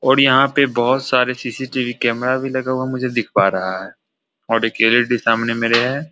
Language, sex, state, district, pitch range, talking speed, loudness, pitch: Hindi, male, Bihar, Saran, 115-130 Hz, 205 wpm, -17 LUFS, 125 Hz